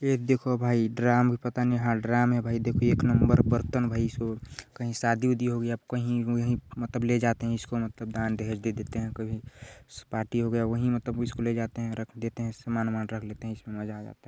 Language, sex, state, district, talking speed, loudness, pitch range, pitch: Hindi, male, Chhattisgarh, Balrampur, 235 wpm, -28 LUFS, 115-120 Hz, 115 Hz